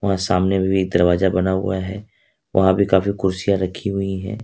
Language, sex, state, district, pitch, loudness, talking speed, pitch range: Hindi, male, Jharkhand, Ranchi, 95 Hz, -19 LUFS, 215 wpm, 95-100 Hz